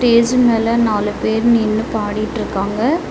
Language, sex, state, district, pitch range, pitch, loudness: Tamil, female, Tamil Nadu, Nilgiris, 210-235 Hz, 225 Hz, -16 LUFS